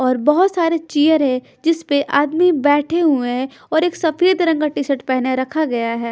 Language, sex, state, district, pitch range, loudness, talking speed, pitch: Hindi, female, Punjab, Pathankot, 260-330 Hz, -17 LUFS, 215 wpm, 295 Hz